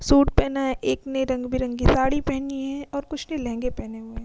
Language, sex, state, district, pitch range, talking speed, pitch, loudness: Hindi, female, Bihar, Vaishali, 255-280 Hz, 240 wpm, 270 Hz, -24 LUFS